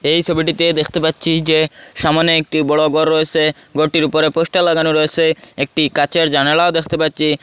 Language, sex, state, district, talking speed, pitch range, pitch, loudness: Bengali, male, Assam, Hailakandi, 160 wpm, 155-165 Hz, 155 Hz, -15 LUFS